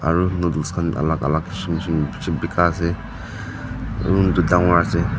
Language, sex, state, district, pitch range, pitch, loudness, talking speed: Nagamese, female, Nagaland, Dimapur, 85-95 Hz, 85 Hz, -20 LUFS, 150 wpm